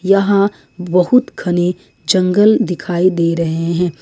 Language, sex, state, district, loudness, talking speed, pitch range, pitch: Hindi, female, Jharkhand, Ranchi, -15 LUFS, 120 wpm, 170-195 Hz, 180 Hz